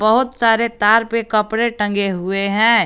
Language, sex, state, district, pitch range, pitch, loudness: Hindi, male, Jharkhand, Garhwa, 205-230 Hz, 225 Hz, -16 LUFS